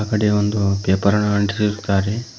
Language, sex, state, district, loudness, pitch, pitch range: Kannada, male, Karnataka, Koppal, -19 LUFS, 105 Hz, 100-105 Hz